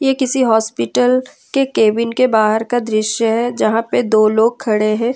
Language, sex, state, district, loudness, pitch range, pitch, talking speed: Hindi, female, Jharkhand, Ranchi, -15 LUFS, 215-250 Hz, 230 Hz, 185 wpm